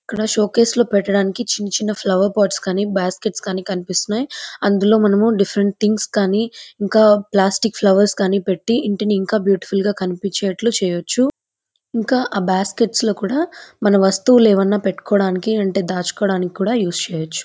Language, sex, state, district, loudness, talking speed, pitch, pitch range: Telugu, female, Andhra Pradesh, Chittoor, -17 LUFS, 145 wpm, 200 Hz, 195-220 Hz